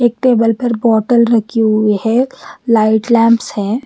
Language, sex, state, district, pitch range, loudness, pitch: Hindi, female, Bihar, Patna, 220-240 Hz, -13 LUFS, 230 Hz